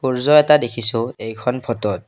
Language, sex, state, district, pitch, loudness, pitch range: Assamese, male, Assam, Kamrup Metropolitan, 120 Hz, -17 LUFS, 115-130 Hz